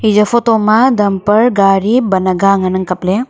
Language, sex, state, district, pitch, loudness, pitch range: Wancho, female, Arunachal Pradesh, Longding, 205 Hz, -11 LUFS, 190-225 Hz